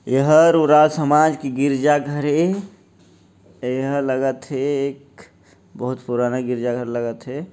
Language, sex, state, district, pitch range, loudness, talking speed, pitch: Chhattisgarhi, male, Chhattisgarh, Jashpur, 125-150 Hz, -19 LUFS, 150 wpm, 140 Hz